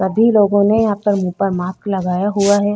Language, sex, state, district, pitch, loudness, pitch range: Hindi, female, Uttar Pradesh, Budaun, 200 Hz, -16 LUFS, 190-205 Hz